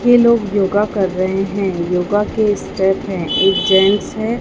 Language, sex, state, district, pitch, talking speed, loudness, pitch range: Hindi, male, Chhattisgarh, Raipur, 195 Hz, 175 wpm, -15 LUFS, 190-210 Hz